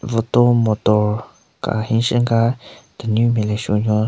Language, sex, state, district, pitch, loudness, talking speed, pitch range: Rengma, male, Nagaland, Kohima, 115 Hz, -18 LUFS, 130 wpm, 105-120 Hz